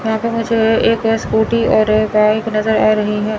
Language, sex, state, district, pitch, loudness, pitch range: Hindi, female, Chandigarh, Chandigarh, 220 Hz, -14 LUFS, 215-225 Hz